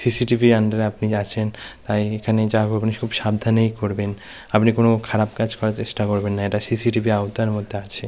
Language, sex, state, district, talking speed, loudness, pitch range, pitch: Bengali, male, West Bengal, Malda, 180 wpm, -20 LUFS, 105-115 Hz, 110 Hz